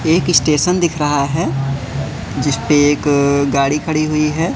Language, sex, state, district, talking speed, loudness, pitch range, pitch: Hindi, male, Madhya Pradesh, Katni, 145 wpm, -15 LUFS, 140-155 Hz, 145 Hz